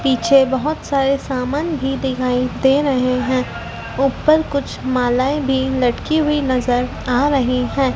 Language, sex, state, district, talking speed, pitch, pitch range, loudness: Hindi, female, Madhya Pradesh, Dhar, 145 wpm, 265 Hz, 255-280 Hz, -18 LUFS